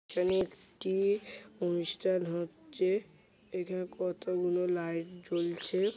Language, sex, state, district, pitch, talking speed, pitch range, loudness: Bengali, male, West Bengal, Jhargram, 180 Hz, 90 wpm, 175-190 Hz, -34 LUFS